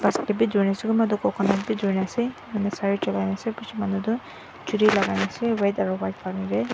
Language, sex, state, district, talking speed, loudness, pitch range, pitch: Nagamese, female, Nagaland, Dimapur, 180 wpm, -24 LUFS, 190-220 Hz, 200 Hz